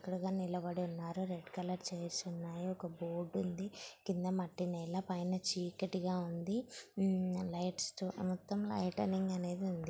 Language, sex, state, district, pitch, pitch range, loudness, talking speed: Telugu, female, Andhra Pradesh, Srikakulam, 180 Hz, 175-190 Hz, -40 LUFS, 150 wpm